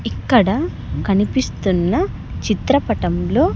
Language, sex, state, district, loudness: Telugu, male, Andhra Pradesh, Sri Satya Sai, -18 LUFS